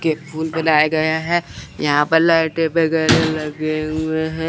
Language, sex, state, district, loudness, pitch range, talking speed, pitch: Hindi, male, Chandigarh, Chandigarh, -18 LUFS, 155-160 Hz, 160 wpm, 160 Hz